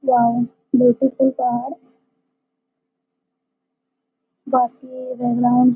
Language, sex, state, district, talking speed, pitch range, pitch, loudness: Hindi, female, Bihar, Gopalganj, 60 wpm, 245-260 Hz, 250 Hz, -19 LUFS